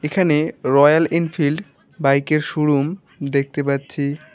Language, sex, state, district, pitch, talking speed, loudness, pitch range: Bengali, male, West Bengal, Alipurduar, 150 Hz, 95 wpm, -19 LUFS, 140-160 Hz